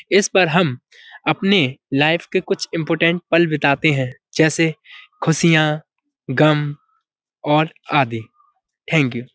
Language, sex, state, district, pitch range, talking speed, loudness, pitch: Hindi, male, Uttar Pradesh, Budaun, 145-185 Hz, 120 wpm, -18 LUFS, 160 Hz